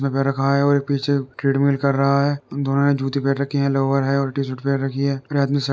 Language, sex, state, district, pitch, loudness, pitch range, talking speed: Hindi, male, Uttar Pradesh, Deoria, 140 Hz, -20 LUFS, 135-140 Hz, 260 wpm